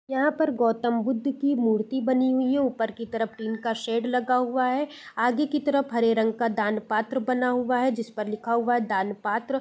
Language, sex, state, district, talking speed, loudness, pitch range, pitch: Hindi, female, Bihar, East Champaran, 225 wpm, -25 LUFS, 225-260 Hz, 240 Hz